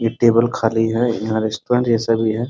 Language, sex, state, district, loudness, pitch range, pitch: Hindi, male, Bihar, Muzaffarpur, -18 LUFS, 110-120 Hz, 115 Hz